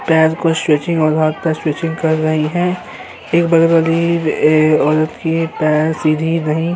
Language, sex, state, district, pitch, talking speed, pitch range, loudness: Hindi, male, Uttar Pradesh, Hamirpur, 160 Hz, 170 wpm, 155-165 Hz, -15 LUFS